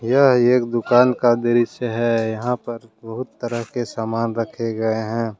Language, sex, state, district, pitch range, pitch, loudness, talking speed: Hindi, male, Jharkhand, Deoghar, 115-120 Hz, 120 Hz, -20 LUFS, 155 wpm